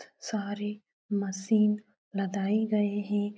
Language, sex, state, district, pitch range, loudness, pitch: Hindi, female, Uttar Pradesh, Etah, 200-210 Hz, -30 LUFS, 205 Hz